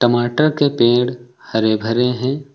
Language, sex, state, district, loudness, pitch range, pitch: Hindi, male, Uttar Pradesh, Lucknow, -17 LUFS, 120-135 Hz, 120 Hz